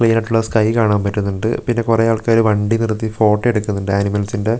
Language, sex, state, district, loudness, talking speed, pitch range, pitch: Malayalam, male, Kerala, Wayanad, -16 LUFS, 170 wpm, 105-115 Hz, 110 Hz